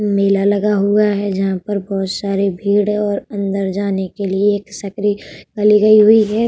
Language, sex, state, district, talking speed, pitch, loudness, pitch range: Hindi, female, Uttar Pradesh, Budaun, 175 wpm, 200 Hz, -16 LUFS, 195-210 Hz